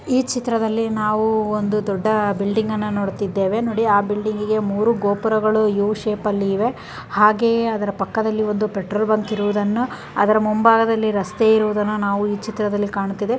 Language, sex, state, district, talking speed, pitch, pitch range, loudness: Kannada, female, Karnataka, Mysore, 145 wpm, 215 Hz, 205-220 Hz, -19 LUFS